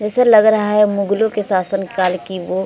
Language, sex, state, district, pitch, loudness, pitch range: Hindi, female, Bihar, Vaishali, 200 Hz, -15 LUFS, 185-210 Hz